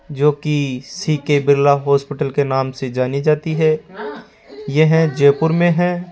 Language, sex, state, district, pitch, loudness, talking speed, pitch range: Hindi, male, Rajasthan, Jaipur, 145 Hz, -17 LUFS, 145 wpm, 140-160 Hz